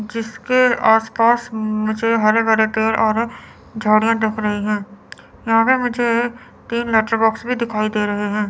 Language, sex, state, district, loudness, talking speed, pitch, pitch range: Hindi, female, Chandigarh, Chandigarh, -18 LUFS, 170 wpm, 225 Hz, 215-235 Hz